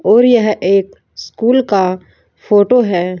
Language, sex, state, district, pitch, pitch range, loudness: Hindi, female, Haryana, Rohtak, 205 Hz, 185-240 Hz, -12 LUFS